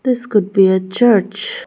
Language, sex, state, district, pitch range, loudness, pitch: English, female, Arunachal Pradesh, Lower Dibang Valley, 195-240 Hz, -14 LUFS, 210 Hz